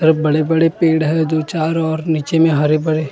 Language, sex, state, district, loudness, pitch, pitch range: Hindi, male, Maharashtra, Gondia, -16 LUFS, 160 Hz, 155-160 Hz